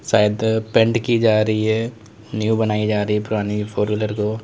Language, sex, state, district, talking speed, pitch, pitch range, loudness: Hindi, male, Uttar Pradesh, Lalitpur, 200 wpm, 110 Hz, 105-110 Hz, -19 LUFS